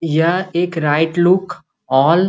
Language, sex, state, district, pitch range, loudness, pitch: Magahi, male, Bihar, Gaya, 155-180 Hz, -16 LUFS, 165 Hz